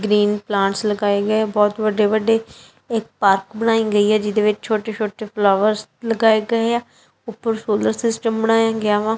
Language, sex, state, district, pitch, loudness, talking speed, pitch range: Punjabi, female, Punjab, Kapurthala, 215 Hz, -19 LUFS, 165 wpm, 210-225 Hz